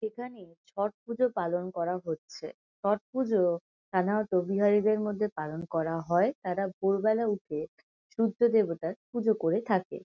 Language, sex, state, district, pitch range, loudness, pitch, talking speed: Bengali, female, West Bengal, Kolkata, 170-220 Hz, -30 LUFS, 195 Hz, 125 wpm